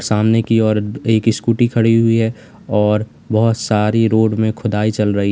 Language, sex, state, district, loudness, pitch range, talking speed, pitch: Hindi, male, Uttar Pradesh, Lalitpur, -16 LUFS, 105-115 Hz, 180 wpm, 110 Hz